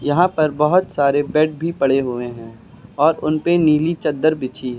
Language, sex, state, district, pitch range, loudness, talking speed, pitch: Hindi, male, Uttar Pradesh, Lucknow, 135-160 Hz, -18 LUFS, 190 wpm, 150 Hz